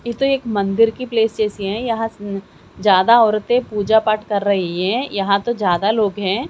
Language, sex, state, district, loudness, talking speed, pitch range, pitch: Hindi, female, Haryana, Jhajjar, -18 LUFS, 195 wpm, 200-225 Hz, 215 Hz